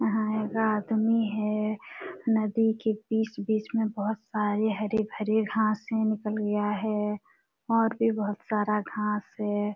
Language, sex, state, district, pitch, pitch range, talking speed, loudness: Hindi, female, Jharkhand, Sahebganj, 215 Hz, 210-220 Hz, 135 wpm, -28 LUFS